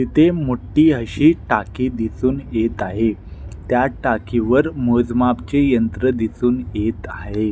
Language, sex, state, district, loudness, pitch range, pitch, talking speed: Marathi, male, Maharashtra, Nagpur, -18 LUFS, 105-130 Hz, 120 Hz, 110 wpm